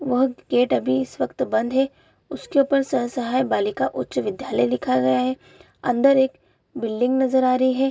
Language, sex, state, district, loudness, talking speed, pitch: Hindi, female, Bihar, Bhagalpur, -21 LUFS, 180 wpm, 245 Hz